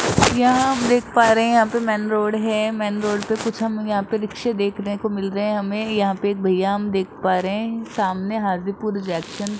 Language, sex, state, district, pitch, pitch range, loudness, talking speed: Hindi, female, Rajasthan, Jaipur, 210 Hz, 200-225 Hz, -21 LUFS, 235 wpm